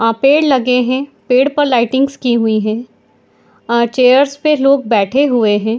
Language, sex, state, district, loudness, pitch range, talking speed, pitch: Hindi, female, Bihar, Madhepura, -13 LUFS, 230-275 Hz, 175 wpm, 250 Hz